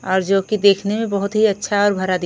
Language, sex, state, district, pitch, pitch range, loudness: Hindi, female, Odisha, Khordha, 200 Hz, 190-210 Hz, -17 LUFS